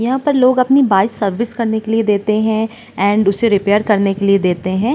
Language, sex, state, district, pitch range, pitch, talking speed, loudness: Hindi, female, Uttar Pradesh, Jyotiba Phule Nagar, 200-235 Hz, 220 Hz, 230 wpm, -15 LUFS